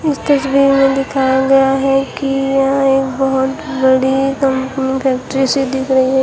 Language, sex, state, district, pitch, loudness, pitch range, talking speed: Hindi, female, Uttar Pradesh, Shamli, 270 Hz, -14 LUFS, 265-275 Hz, 165 wpm